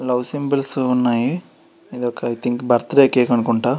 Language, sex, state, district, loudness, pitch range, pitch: Telugu, male, Andhra Pradesh, Srikakulam, -17 LUFS, 120-135 Hz, 125 Hz